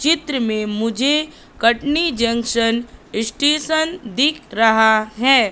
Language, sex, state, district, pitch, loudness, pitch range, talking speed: Hindi, female, Madhya Pradesh, Katni, 240 Hz, -17 LUFS, 225-295 Hz, 100 wpm